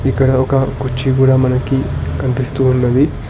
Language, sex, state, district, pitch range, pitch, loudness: Telugu, male, Telangana, Hyderabad, 130-135 Hz, 130 Hz, -15 LUFS